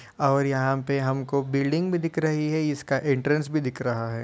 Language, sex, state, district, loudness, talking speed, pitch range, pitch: Hindi, male, Uttar Pradesh, Ghazipur, -25 LUFS, 210 wpm, 135-150 Hz, 140 Hz